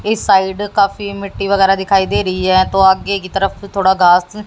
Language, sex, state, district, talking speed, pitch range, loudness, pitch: Hindi, female, Haryana, Jhajjar, 215 wpm, 190-200 Hz, -14 LUFS, 195 Hz